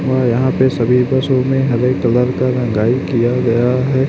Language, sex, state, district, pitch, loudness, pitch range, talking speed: Hindi, male, Chhattisgarh, Raipur, 125 Hz, -15 LUFS, 120-130 Hz, 190 wpm